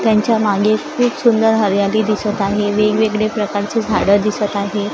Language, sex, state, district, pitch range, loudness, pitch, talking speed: Marathi, female, Maharashtra, Gondia, 205-220 Hz, -16 LUFS, 210 Hz, 145 wpm